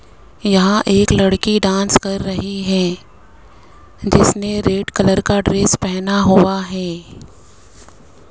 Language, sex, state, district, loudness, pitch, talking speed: Hindi, male, Rajasthan, Jaipur, -15 LUFS, 190 Hz, 110 wpm